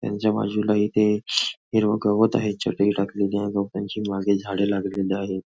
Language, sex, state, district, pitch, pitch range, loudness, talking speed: Marathi, male, Maharashtra, Nagpur, 100 Hz, 100-105 Hz, -23 LUFS, 155 wpm